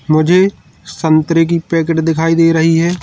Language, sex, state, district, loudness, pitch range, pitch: Hindi, male, Madhya Pradesh, Katni, -12 LUFS, 160-170 Hz, 165 Hz